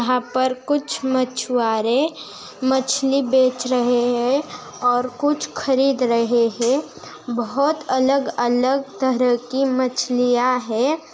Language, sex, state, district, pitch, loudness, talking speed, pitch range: Hindi, female, Bihar, Bhagalpur, 255 Hz, -20 LUFS, 95 wpm, 245-270 Hz